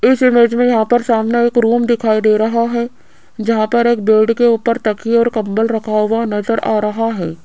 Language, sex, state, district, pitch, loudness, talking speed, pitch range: Hindi, female, Rajasthan, Jaipur, 230 Hz, -14 LUFS, 220 wpm, 215-235 Hz